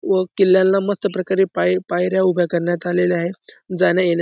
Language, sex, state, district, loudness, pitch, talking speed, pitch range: Marathi, male, Maharashtra, Dhule, -18 LUFS, 185 Hz, 140 wpm, 175-190 Hz